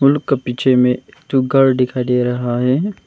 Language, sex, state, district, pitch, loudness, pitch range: Hindi, male, Arunachal Pradesh, Longding, 130 Hz, -16 LUFS, 125-135 Hz